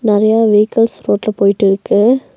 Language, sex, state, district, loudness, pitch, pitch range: Tamil, female, Tamil Nadu, Nilgiris, -12 LUFS, 215 Hz, 205-225 Hz